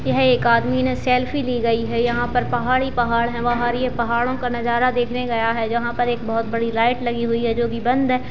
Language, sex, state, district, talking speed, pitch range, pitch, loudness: Hindi, female, Bihar, Jahanabad, 245 wpm, 230-245 Hz, 235 Hz, -20 LUFS